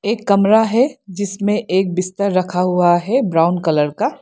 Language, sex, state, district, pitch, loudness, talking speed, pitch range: Hindi, female, Arunachal Pradesh, Lower Dibang Valley, 195 Hz, -16 LUFS, 170 wpm, 180-220 Hz